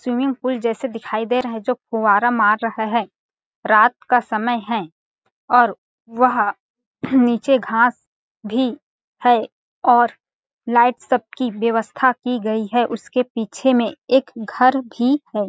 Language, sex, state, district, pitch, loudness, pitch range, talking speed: Hindi, female, Chhattisgarh, Balrampur, 240 Hz, -19 LUFS, 225-250 Hz, 145 wpm